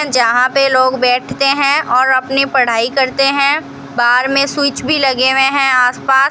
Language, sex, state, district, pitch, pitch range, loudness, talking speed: Hindi, female, Rajasthan, Bikaner, 270 Hz, 255-275 Hz, -12 LUFS, 180 wpm